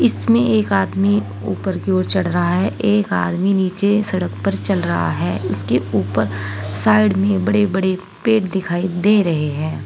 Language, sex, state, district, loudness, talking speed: Hindi, female, Uttar Pradesh, Saharanpur, -18 LUFS, 170 wpm